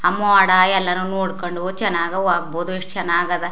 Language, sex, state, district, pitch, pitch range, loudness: Kannada, female, Karnataka, Chamarajanagar, 185 Hz, 175-190 Hz, -18 LUFS